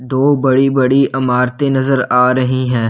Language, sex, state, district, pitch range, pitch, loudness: Hindi, male, Delhi, New Delhi, 125-135 Hz, 130 Hz, -13 LUFS